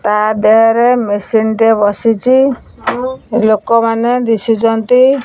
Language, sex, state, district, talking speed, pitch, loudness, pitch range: Odia, female, Odisha, Khordha, 90 wpm, 225 Hz, -12 LUFS, 220-245 Hz